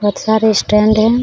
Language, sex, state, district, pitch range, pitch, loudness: Hindi, female, Jharkhand, Sahebganj, 210-220 Hz, 220 Hz, -12 LUFS